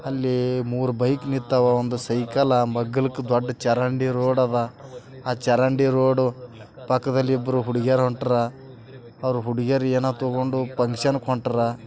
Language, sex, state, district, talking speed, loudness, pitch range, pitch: Kannada, male, Karnataka, Bijapur, 100 wpm, -22 LUFS, 120-130 Hz, 125 Hz